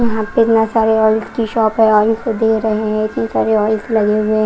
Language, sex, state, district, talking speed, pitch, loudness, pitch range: Hindi, female, Punjab, Kapurthala, 240 wpm, 220 Hz, -15 LUFS, 215-225 Hz